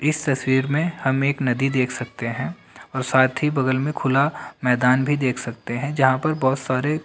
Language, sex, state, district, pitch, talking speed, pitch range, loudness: Hindi, male, Bihar, Darbhanga, 130 Hz, 205 wpm, 130-145 Hz, -21 LUFS